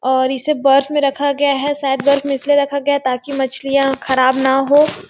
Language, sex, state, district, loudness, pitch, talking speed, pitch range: Hindi, female, Chhattisgarh, Sarguja, -15 LUFS, 275 Hz, 225 wpm, 265-285 Hz